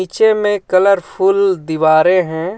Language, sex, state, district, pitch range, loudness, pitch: Hindi, male, Jharkhand, Ranchi, 165-200 Hz, -13 LUFS, 185 Hz